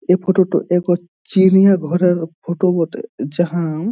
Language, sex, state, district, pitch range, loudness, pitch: Bengali, male, West Bengal, Jhargram, 170-190 Hz, -16 LUFS, 175 Hz